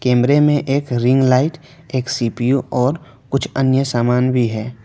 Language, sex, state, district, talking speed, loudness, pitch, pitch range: Hindi, male, West Bengal, Alipurduar, 160 wpm, -17 LUFS, 130 Hz, 125-140 Hz